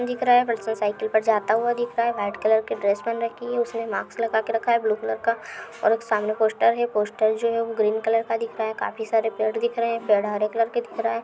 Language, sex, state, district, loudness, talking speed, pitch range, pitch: Hindi, female, Uttar Pradesh, Hamirpur, -23 LUFS, 290 wpm, 215-230 Hz, 225 Hz